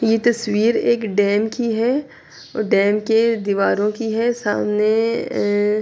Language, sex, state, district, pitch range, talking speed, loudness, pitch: Urdu, female, Andhra Pradesh, Anantapur, 210-230 Hz, 125 wpm, -19 LUFS, 220 Hz